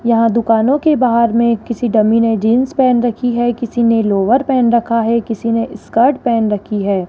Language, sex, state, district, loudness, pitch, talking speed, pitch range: Hindi, male, Rajasthan, Jaipur, -14 LUFS, 235 Hz, 195 wpm, 225-240 Hz